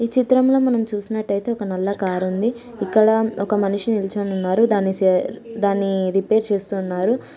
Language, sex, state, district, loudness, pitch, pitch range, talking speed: Telugu, female, Andhra Pradesh, Srikakulam, -20 LUFS, 205 Hz, 195-230 Hz, 145 wpm